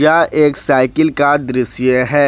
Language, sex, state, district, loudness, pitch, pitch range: Hindi, male, Jharkhand, Ranchi, -13 LUFS, 145 Hz, 130-150 Hz